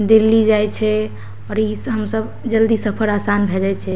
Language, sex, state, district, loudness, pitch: Maithili, female, Bihar, Darbhanga, -17 LUFS, 205 Hz